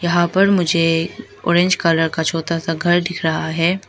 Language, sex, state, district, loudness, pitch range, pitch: Hindi, female, Arunachal Pradesh, Lower Dibang Valley, -17 LUFS, 165-175 Hz, 170 Hz